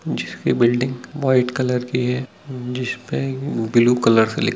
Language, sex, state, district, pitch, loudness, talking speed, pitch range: Hindi, male, Chhattisgarh, Bilaspur, 125 Hz, -20 LUFS, 130 wpm, 120-130 Hz